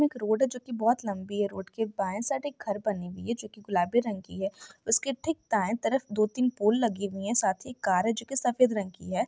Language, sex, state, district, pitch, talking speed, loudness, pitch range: Hindi, female, Bihar, Jahanabad, 220 Hz, 290 wpm, -29 LUFS, 200-245 Hz